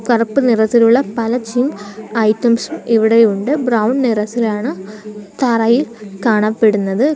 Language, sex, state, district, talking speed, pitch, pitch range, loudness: Malayalam, female, Kerala, Kollam, 85 wpm, 230 Hz, 215-245 Hz, -15 LUFS